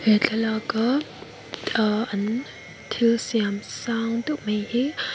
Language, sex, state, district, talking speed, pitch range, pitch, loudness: Mizo, female, Mizoram, Aizawl, 115 wpm, 215-235 Hz, 225 Hz, -24 LUFS